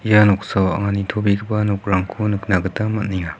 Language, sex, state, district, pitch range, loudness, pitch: Garo, male, Meghalaya, West Garo Hills, 95-105 Hz, -19 LUFS, 100 Hz